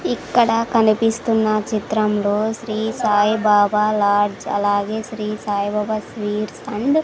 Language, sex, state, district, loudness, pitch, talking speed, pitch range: Telugu, female, Andhra Pradesh, Sri Satya Sai, -19 LUFS, 215 Hz, 120 wpm, 210-220 Hz